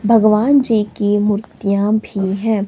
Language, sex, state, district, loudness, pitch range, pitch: Hindi, female, Himachal Pradesh, Shimla, -16 LUFS, 205-220 Hz, 215 Hz